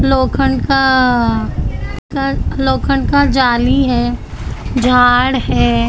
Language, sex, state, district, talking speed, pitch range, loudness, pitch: Hindi, female, Maharashtra, Mumbai Suburban, 90 wpm, 240-265 Hz, -14 LUFS, 250 Hz